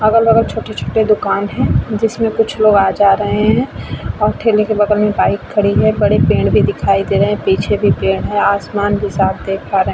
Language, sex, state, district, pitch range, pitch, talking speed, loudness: Hindi, female, Bihar, Vaishali, 195-215 Hz, 205 Hz, 225 wpm, -14 LUFS